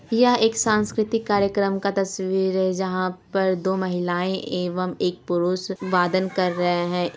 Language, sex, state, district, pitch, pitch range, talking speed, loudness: Hindi, female, Bihar, Lakhisarai, 190 Hz, 180-200 Hz, 150 wpm, -23 LUFS